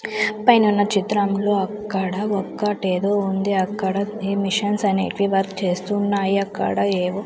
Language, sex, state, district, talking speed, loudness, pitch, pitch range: Telugu, female, Andhra Pradesh, Sri Satya Sai, 115 wpm, -21 LUFS, 200 Hz, 195-205 Hz